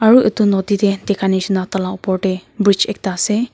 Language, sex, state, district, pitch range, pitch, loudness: Nagamese, female, Nagaland, Kohima, 190-210 Hz, 200 Hz, -16 LUFS